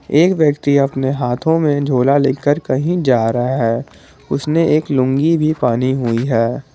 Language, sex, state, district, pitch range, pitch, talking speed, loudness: Hindi, male, Jharkhand, Garhwa, 125-150 Hz, 135 Hz, 160 wpm, -16 LUFS